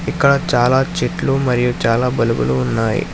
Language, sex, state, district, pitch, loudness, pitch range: Telugu, male, Telangana, Hyderabad, 125 Hz, -16 LUFS, 115-135 Hz